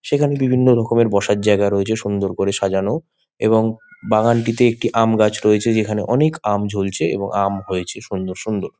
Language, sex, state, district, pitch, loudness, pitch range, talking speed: Bengali, male, West Bengal, Malda, 105 Hz, -18 LUFS, 100-115 Hz, 165 wpm